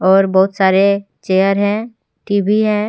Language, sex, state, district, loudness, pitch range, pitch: Hindi, female, Jharkhand, Deoghar, -14 LUFS, 190-210 Hz, 200 Hz